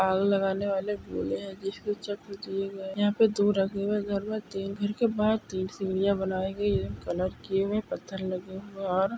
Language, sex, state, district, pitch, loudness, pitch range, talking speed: Hindi, female, Maharashtra, Pune, 195 Hz, -29 LUFS, 190-205 Hz, 195 wpm